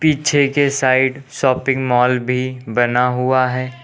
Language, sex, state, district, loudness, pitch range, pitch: Hindi, male, Uttar Pradesh, Lucknow, -16 LUFS, 125-140 Hz, 130 Hz